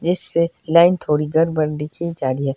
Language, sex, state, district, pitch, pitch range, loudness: Hindi, male, Himachal Pradesh, Shimla, 160 Hz, 150-170 Hz, -18 LUFS